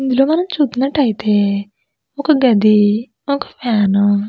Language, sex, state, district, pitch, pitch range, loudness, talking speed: Telugu, female, Andhra Pradesh, Krishna, 225 Hz, 205-280 Hz, -15 LUFS, 110 wpm